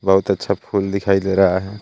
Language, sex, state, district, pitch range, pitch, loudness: Hindi, male, Jharkhand, Garhwa, 95-100 Hz, 95 Hz, -18 LUFS